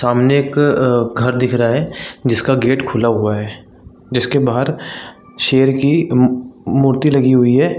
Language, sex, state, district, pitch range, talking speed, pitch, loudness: Hindi, male, Chhattisgarh, Rajnandgaon, 120-135 Hz, 160 wpm, 125 Hz, -15 LUFS